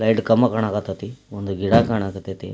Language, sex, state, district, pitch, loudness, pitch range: Kannada, male, Karnataka, Belgaum, 105 Hz, -20 LUFS, 95-115 Hz